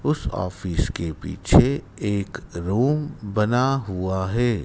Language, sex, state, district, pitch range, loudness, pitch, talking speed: Hindi, male, Madhya Pradesh, Dhar, 90-125 Hz, -23 LUFS, 100 Hz, 115 wpm